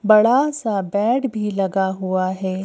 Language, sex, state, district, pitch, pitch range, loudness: Hindi, female, Madhya Pradesh, Bhopal, 205 Hz, 190-225 Hz, -19 LUFS